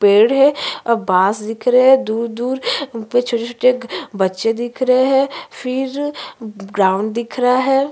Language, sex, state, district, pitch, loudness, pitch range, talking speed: Hindi, female, Uttarakhand, Tehri Garhwal, 240 Hz, -17 LUFS, 220-260 Hz, 150 wpm